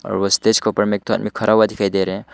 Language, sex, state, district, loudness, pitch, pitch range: Hindi, male, Arunachal Pradesh, Longding, -17 LUFS, 105 Hz, 100-110 Hz